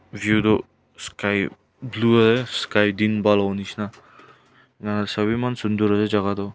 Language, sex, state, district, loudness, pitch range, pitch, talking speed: Nagamese, male, Nagaland, Kohima, -21 LUFS, 105-110 Hz, 105 Hz, 145 wpm